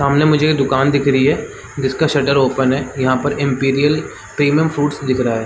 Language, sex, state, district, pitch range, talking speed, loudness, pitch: Hindi, male, Chhattisgarh, Balrampur, 130-145 Hz, 185 wpm, -16 LUFS, 140 Hz